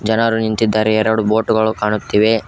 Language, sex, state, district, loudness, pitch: Kannada, male, Karnataka, Koppal, -16 LUFS, 110 Hz